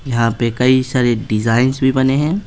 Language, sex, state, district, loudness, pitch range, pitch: Hindi, male, Bihar, Patna, -15 LUFS, 115-130 Hz, 125 Hz